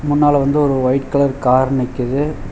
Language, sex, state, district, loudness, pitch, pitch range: Tamil, male, Tamil Nadu, Chennai, -16 LUFS, 140 Hz, 130-145 Hz